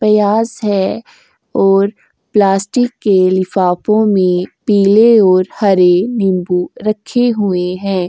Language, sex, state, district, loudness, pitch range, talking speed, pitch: Hindi, female, Uttar Pradesh, Jyotiba Phule Nagar, -13 LUFS, 185-215 Hz, 95 wpm, 200 Hz